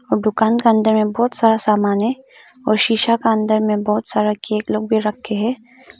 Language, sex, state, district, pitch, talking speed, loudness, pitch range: Hindi, female, Arunachal Pradesh, Papum Pare, 220 Hz, 200 wpm, -17 LUFS, 215-230 Hz